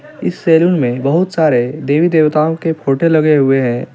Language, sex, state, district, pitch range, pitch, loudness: Hindi, male, Jharkhand, Deoghar, 135-165 Hz, 155 Hz, -13 LUFS